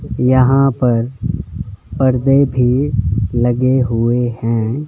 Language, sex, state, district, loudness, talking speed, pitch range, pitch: Hindi, male, Himachal Pradesh, Shimla, -15 LUFS, 85 wpm, 115-130 Hz, 125 Hz